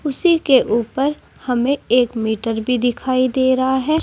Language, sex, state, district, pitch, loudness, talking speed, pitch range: Hindi, female, Uttar Pradesh, Saharanpur, 260 Hz, -17 LUFS, 165 wpm, 245-280 Hz